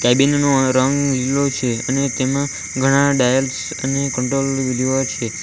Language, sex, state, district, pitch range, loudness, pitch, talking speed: Gujarati, male, Gujarat, Valsad, 130-140 Hz, -18 LUFS, 135 Hz, 145 wpm